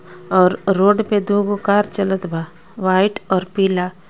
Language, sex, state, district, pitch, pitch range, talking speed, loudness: Bhojpuri, female, Jharkhand, Palamu, 190 Hz, 185-205 Hz, 160 wpm, -17 LUFS